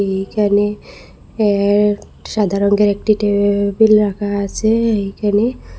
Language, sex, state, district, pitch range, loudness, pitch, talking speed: Bengali, female, Assam, Hailakandi, 200-215 Hz, -16 LUFS, 205 Hz, 95 wpm